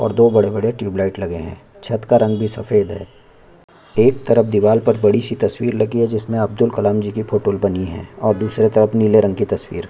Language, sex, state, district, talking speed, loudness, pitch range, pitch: Hindi, male, Chhattisgarh, Sukma, 235 wpm, -17 LUFS, 100-110 Hz, 110 Hz